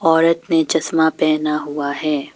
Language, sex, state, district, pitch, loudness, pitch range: Hindi, female, Arunachal Pradesh, Papum Pare, 155 Hz, -18 LUFS, 150-165 Hz